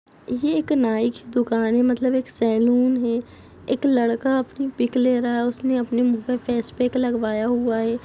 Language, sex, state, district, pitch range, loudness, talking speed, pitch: Hindi, female, Jharkhand, Jamtara, 235-255 Hz, -21 LUFS, 195 wpm, 245 Hz